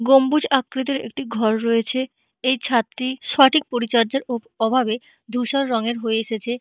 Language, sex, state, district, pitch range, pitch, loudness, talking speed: Bengali, female, West Bengal, North 24 Parganas, 230-265 Hz, 245 Hz, -21 LUFS, 135 wpm